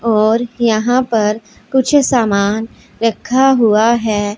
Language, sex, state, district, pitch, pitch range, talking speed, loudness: Hindi, female, Punjab, Pathankot, 230 Hz, 215-250 Hz, 110 wpm, -14 LUFS